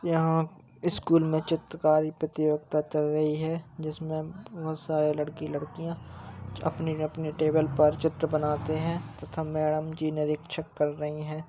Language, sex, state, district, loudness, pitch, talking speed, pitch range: Hindi, male, Uttar Pradesh, Jalaun, -29 LUFS, 155 Hz, 140 wpm, 150-160 Hz